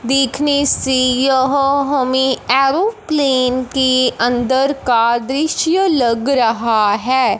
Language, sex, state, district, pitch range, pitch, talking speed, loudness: Hindi, female, Punjab, Fazilka, 250-280 Hz, 260 Hz, 95 wpm, -15 LUFS